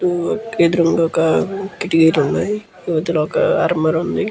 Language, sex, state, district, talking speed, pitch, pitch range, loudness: Telugu, female, Andhra Pradesh, Guntur, 110 wpm, 170 Hz, 165-195 Hz, -17 LUFS